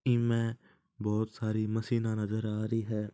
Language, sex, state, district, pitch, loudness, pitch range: Marwari, male, Rajasthan, Nagaur, 110 Hz, -32 LUFS, 110-115 Hz